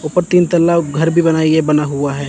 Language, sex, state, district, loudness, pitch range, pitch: Hindi, male, Chandigarh, Chandigarh, -13 LUFS, 150-170 Hz, 160 Hz